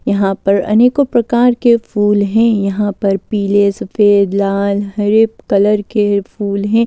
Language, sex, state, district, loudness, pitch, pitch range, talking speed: Hindi, female, Delhi, New Delhi, -13 LUFS, 205 Hz, 200-225 Hz, 150 wpm